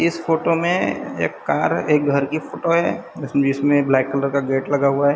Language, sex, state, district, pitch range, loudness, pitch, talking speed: Hindi, male, Maharashtra, Gondia, 140-165 Hz, -19 LUFS, 145 Hz, 210 wpm